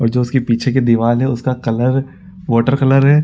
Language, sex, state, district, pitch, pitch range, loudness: Hindi, male, Uttar Pradesh, Budaun, 130 Hz, 120-135 Hz, -15 LUFS